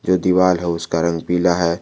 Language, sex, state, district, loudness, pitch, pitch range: Hindi, male, Jharkhand, Garhwa, -18 LUFS, 85 Hz, 85-90 Hz